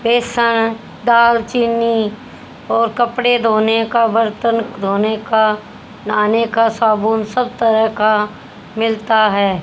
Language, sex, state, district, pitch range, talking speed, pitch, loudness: Hindi, female, Haryana, Rohtak, 215-230 Hz, 110 wpm, 225 Hz, -15 LUFS